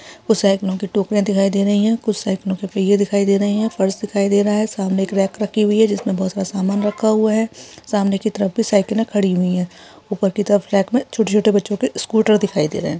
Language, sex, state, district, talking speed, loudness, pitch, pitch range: Hindi, female, Chhattisgarh, Bilaspur, 260 wpm, -18 LUFS, 205 Hz, 195-215 Hz